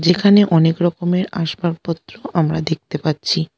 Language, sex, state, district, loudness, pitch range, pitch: Bengali, female, West Bengal, Alipurduar, -18 LUFS, 160-175 Hz, 165 Hz